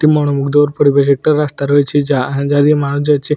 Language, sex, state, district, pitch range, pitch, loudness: Bengali, male, Tripura, West Tripura, 140-150 Hz, 145 Hz, -13 LUFS